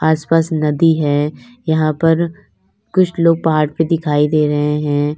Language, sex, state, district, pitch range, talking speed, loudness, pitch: Hindi, female, Uttar Pradesh, Lalitpur, 150-165 Hz, 160 wpm, -15 LUFS, 155 Hz